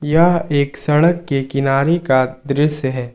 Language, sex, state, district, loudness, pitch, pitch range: Hindi, male, Jharkhand, Ranchi, -16 LUFS, 145 Hz, 135-160 Hz